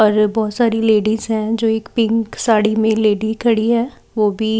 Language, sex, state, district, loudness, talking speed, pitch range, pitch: Hindi, female, Haryana, Rohtak, -16 LUFS, 195 wpm, 215-225 Hz, 220 Hz